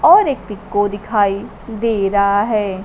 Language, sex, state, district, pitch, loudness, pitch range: Hindi, female, Bihar, Kaimur, 205 Hz, -17 LUFS, 200-225 Hz